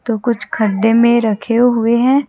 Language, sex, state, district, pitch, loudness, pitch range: Hindi, female, Chhattisgarh, Raipur, 235 Hz, -14 LUFS, 225-240 Hz